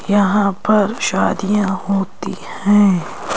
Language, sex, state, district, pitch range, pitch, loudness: Hindi, female, Madhya Pradesh, Bhopal, 195-205 Hz, 200 Hz, -16 LUFS